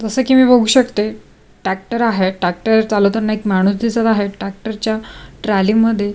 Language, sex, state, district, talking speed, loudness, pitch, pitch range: Marathi, female, Maharashtra, Sindhudurg, 165 wpm, -15 LUFS, 220 Hz, 200-225 Hz